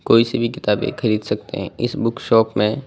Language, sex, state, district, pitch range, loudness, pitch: Hindi, male, Delhi, New Delhi, 110-125 Hz, -19 LUFS, 115 Hz